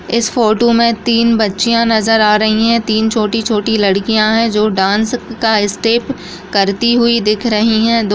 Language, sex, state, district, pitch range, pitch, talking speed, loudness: Hindi, female, Bihar, Bhagalpur, 210-230 Hz, 220 Hz, 160 wpm, -13 LUFS